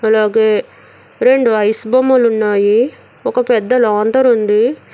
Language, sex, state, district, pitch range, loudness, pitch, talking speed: Telugu, female, Telangana, Hyderabad, 215-250 Hz, -13 LUFS, 225 Hz, 110 wpm